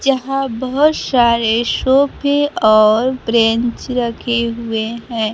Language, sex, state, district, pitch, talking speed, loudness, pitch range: Hindi, female, Bihar, Kaimur, 235 Hz, 100 wpm, -15 LUFS, 230-270 Hz